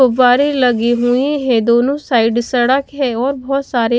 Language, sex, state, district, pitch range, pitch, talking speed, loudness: Hindi, female, Chhattisgarh, Raipur, 240-275 Hz, 250 Hz, 165 wpm, -14 LUFS